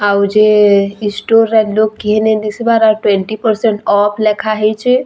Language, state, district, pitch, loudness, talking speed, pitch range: Sambalpuri, Odisha, Sambalpur, 215 Hz, -12 LUFS, 200 wpm, 205-220 Hz